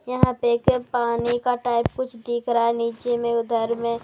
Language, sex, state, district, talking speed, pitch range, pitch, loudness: Hindi, female, Bihar, Kaimur, 210 wpm, 235-245 Hz, 235 Hz, -23 LUFS